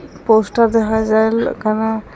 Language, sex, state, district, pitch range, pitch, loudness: Bengali, female, Assam, Hailakandi, 220-225 Hz, 220 Hz, -15 LUFS